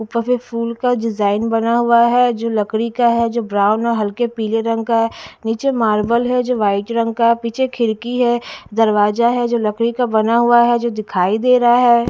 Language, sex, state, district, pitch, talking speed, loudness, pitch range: Hindi, female, Haryana, Jhajjar, 230 Hz, 220 wpm, -16 LUFS, 220-240 Hz